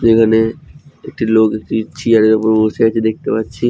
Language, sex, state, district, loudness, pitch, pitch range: Bengali, male, West Bengal, Jhargram, -14 LUFS, 110 Hz, 110-115 Hz